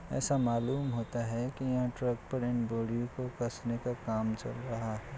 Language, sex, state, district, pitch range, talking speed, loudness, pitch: Hindi, male, Bihar, Kishanganj, 115-125 Hz, 185 wpm, -34 LUFS, 120 Hz